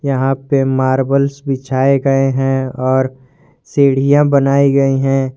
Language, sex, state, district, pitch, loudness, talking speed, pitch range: Hindi, male, Jharkhand, Garhwa, 135 Hz, -14 LUFS, 125 wpm, 130-140 Hz